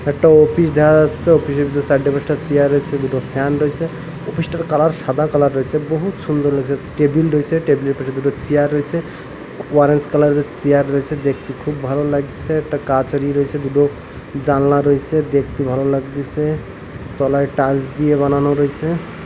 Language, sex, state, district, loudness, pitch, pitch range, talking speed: Bengali, male, Odisha, Malkangiri, -17 LUFS, 145 Hz, 140-155 Hz, 170 wpm